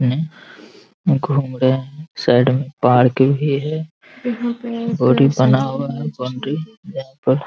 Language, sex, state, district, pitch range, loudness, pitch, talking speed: Hindi, male, Bihar, Araria, 130-160 Hz, -18 LUFS, 140 Hz, 135 wpm